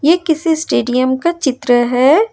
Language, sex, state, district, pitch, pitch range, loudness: Hindi, female, Jharkhand, Ranchi, 285 Hz, 255-325 Hz, -14 LUFS